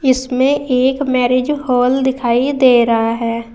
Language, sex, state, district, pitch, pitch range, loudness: Hindi, female, Uttar Pradesh, Saharanpur, 255 Hz, 240-265 Hz, -14 LUFS